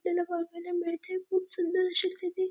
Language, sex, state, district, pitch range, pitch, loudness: Marathi, female, Maharashtra, Dhule, 350-370 Hz, 360 Hz, -31 LUFS